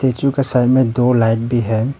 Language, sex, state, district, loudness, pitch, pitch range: Hindi, male, Arunachal Pradesh, Papum Pare, -15 LUFS, 125 Hz, 115-130 Hz